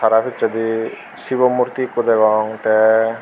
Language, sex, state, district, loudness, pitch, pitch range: Chakma, male, Tripura, Unakoti, -17 LUFS, 115 Hz, 110-120 Hz